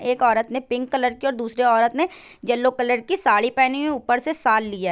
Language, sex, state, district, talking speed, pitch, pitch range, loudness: Hindi, female, Bihar, Gopalganj, 245 wpm, 250 Hz, 235-275 Hz, -21 LUFS